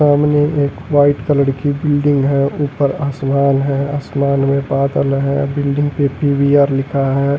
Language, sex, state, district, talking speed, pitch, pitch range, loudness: Hindi, male, Delhi, New Delhi, 155 wpm, 140 Hz, 140-145 Hz, -15 LUFS